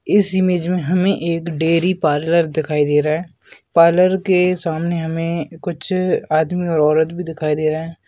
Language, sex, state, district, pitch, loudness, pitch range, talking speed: Hindi, male, Maharashtra, Aurangabad, 165 Hz, -17 LUFS, 160-180 Hz, 180 wpm